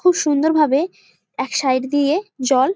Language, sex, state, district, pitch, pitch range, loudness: Bengali, female, West Bengal, Jalpaiguri, 295 Hz, 270-335 Hz, -18 LUFS